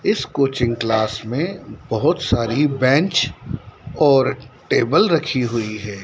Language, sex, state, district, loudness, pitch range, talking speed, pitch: Hindi, male, Madhya Pradesh, Dhar, -19 LUFS, 115-145 Hz, 120 wpm, 130 Hz